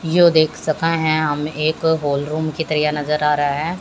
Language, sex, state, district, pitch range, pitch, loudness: Hindi, female, Haryana, Jhajjar, 150-160 Hz, 155 Hz, -18 LUFS